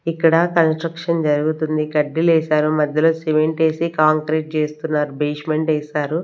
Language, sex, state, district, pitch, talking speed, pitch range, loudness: Telugu, female, Andhra Pradesh, Sri Satya Sai, 155 Hz, 125 wpm, 150-160 Hz, -18 LUFS